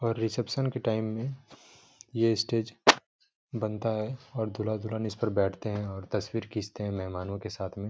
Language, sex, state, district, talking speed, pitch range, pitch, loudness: Hindi, male, Jharkhand, Jamtara, 180 wpm, 105-115 Hz, 110 Hz, -31 LUFS